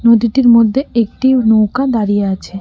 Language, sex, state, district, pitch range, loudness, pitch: Bengali, female, West Bengal, Cooch Behar, 215-255 Hz, -12 LUFS, 230 Hz